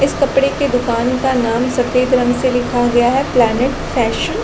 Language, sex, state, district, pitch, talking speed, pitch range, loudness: Hindi, female, Chhattisgarh, Raigarh, 250 Hz, 205 wpm, 245-265 Hz, -15 LUFS